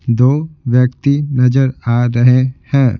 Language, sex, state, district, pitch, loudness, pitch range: Hindi, male, Bihar, Patna, 130 Hz, -13 LUFS, 125-140 Hz